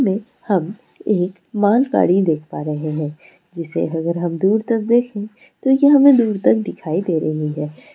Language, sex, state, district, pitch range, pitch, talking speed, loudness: Maithili, female, Bihar, Madhepura, 165-220 Hz, 190 Hz, 180 wpm, -18 LUFS